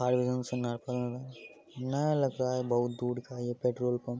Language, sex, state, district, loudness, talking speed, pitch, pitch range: Hindi, male, Bihar, Araria, -32 LUFS, 255 wpm, 125 Hz, 120-125 Hz